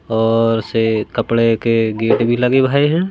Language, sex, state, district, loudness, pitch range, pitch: Hindi, male, Madhya Pradesh, Katni, -15 LUFS, 115-120 Hz, 115 Hz